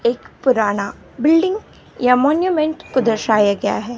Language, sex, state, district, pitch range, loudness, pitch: Hindi, female, Gujarat, Gandhinagar, 220-310 Hz, -17 LUFS, 250 Hz